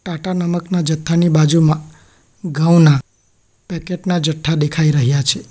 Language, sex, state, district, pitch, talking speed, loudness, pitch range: Gujarati, male, Gujarat, Valsad, 160 Hz, 120 wpm, -15 LUFS, 140-170 Hz